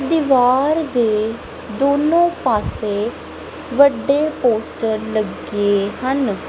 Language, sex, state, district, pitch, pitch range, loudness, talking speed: Punjabi, female, Punjab, Kapurthala, 255 Hz, 215-285 Hz, -18 LUFS, 75 wpm